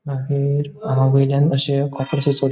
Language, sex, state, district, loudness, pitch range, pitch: Konkani, male, Goa, North and South Goa, -19 LUFS, 135-145 Hz, 140 Hz